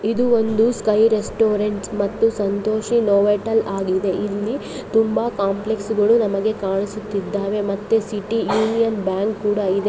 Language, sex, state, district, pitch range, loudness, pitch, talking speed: Kannada, female, Karnataka, Raichur, 200-225 Hz, -20 LUFS, 210 Hz, 115 wpm